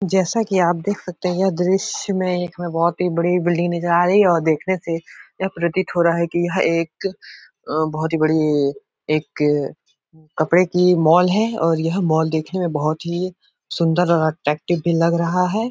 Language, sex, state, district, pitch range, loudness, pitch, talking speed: Hindi, male, Uttar Pradesh, Etah, 160-180 Hz, -19 LUFS, 170 Hz, 200 wpm